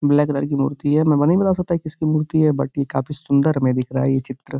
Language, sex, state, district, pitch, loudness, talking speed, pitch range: Hindi, male, Uttar Pradesh, Gorakhpur, 145 Hz, -19 LUFS, 275 wpm, 135-155 Hz